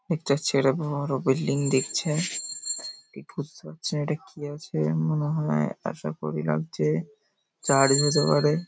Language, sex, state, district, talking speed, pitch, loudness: Bengali, male, West Bengal, Paschim Medinipur, 150 wpm, 140 Hz, -26 LUFS